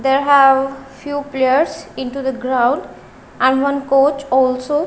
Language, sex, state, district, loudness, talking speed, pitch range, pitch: English, female, Punjab, Kapurthala, -16 LUFS, 135 wpm, 260-280 Hz, 270 Hz